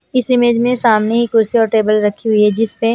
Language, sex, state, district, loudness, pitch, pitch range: Hindi, female, Punjab, Kapurthala, -13 LUFS, 225 Hz, 215-235 Hz